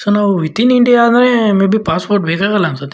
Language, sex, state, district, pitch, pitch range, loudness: Kannada, male, Karnataka, Shimoga, 205 Hz, 175-235 Hz, -12 LUFS